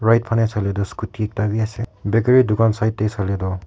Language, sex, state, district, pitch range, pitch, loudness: Nagamese, male, Nagaland, Kohima, 100-115 Hz, 110 Hz, -20 LUFS